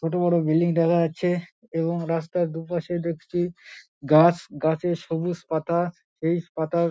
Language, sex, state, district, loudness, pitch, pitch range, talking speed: Bengali, male, West Bengal, Dakshin Dinajpur, -24 LUFS, 170 Hz, 165-175 Hz, 140 wpm